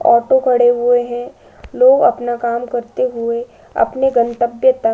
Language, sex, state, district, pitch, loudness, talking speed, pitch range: Hindi, female, Uttar Pradesh, Budaun, 245 Hz, -15 LUFS, 160 wpm, 235-265 Hz